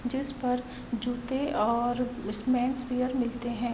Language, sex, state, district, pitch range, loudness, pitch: Hindi, female, Uttar Pradesh, Varanasi, 240-255 Hz, -30 LUFS, 250 Hz